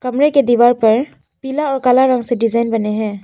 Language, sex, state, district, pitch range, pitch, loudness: Hindi, female, Arunachal Pradesh, Papum Pare, 230-270 Hz, 245 Hz, -14 LUFS